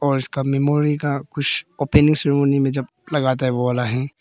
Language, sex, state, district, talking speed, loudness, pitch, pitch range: Hindi, female, Arunachal Pradesh, Papum Pare, 200 wpm, -19 LUFS, 140 Hz, 130-145 Hz